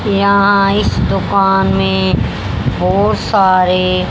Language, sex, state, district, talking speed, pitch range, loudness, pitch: Hindi, male, Haryana, Jhajjar, 85 wpm, 185-200 Hz, -13 LUFS, 195 Hz